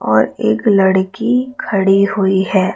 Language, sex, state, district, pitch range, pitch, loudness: Hindi, female, Chhattisgarh, Raipur, 190-210 Hz, 195 Hz, -14 LUFS